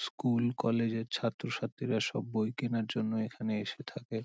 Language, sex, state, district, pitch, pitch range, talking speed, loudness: Bengali, male, West Bengal, Dakshin Dinajpur, 115 Hz, 110-120 Hz, 155 wpm, -34 LUFS